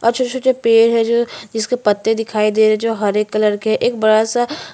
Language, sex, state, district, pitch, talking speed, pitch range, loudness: Hindi, female, Chhattisgarh, Bastar, 225 Hz, 230 wpm, 215-240 Hz, -16 LUFS